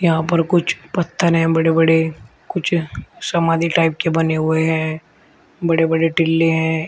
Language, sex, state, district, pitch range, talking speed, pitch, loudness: Hindi, male, Uttar Pradesh, Shamli, 160-170 Hz, 140 wpm, 165 Hz, -17 LUFS